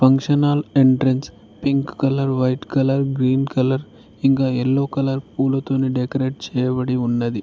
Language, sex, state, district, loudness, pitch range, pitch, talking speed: Telugu, male, Telangana, Mahabubabad, -19 LUFS, 130-135 Hz, 135 Hz, 120 wpm